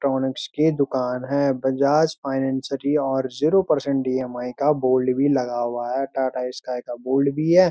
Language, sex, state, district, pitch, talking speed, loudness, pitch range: Hindi, male, Uttarakhand, Uttarkashi, 135 Hz, 185 wpm, -22 LUFS, 130-140 Hz